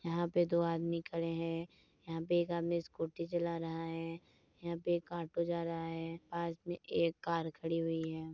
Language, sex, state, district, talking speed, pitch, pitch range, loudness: Hindi, female, Uttar Pradesh, Muzaffarnagar, 200 wpm, 165 Hz, 165-170 Hz, -38 LUFS